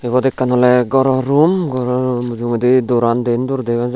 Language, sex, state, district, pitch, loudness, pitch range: Chakma, male, Tripura, Unakoti, 125 Hz, -15 LUFS, 120-130 Hz